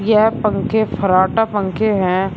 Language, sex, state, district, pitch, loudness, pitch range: Hindi, male, Uttar Pradesh, Shamli, 205 Hz, -16 LUFS, 190-215 Hz